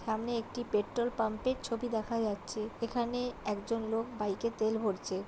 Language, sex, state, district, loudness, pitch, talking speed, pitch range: Bengali, male, West Bengal, Jhargram, -35 LUFS, 225 Hz, 160 wpm, 215-235 Hz